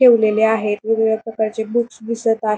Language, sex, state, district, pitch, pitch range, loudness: Marathi, female, Maharashtra, Pune, 220 Hz, 220-230 Hz, -18 LUFS